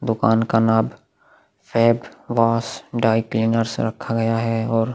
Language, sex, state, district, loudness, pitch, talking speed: Hindi, male, Chhattisgarh, Korba, -20 LUFS, 115 Hz, 120 wpm